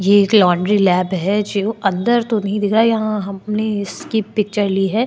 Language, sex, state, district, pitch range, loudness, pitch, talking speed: Hindi, female, Maharashtra, Chandrapur, 195-220 Hz, -17 LUFS, 205 Hz, 200 wpm